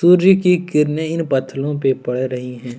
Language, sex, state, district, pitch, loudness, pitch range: Hindi, male, Jharkhand, Deoghar, 145 Hz, -17 LUFS, 130-170 Hz